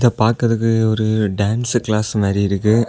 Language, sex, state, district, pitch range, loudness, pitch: Tamil, male, Tamil Nadu, Kanyakumari, 105-115 Hz, -17 LUFS, 110 Hz